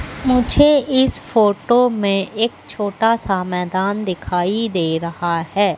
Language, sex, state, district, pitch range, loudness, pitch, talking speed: Hindi, female, Madhya Pradesh, Katni, 180-230 Hz, -17 LUFS, 205 Hz, 125 wpm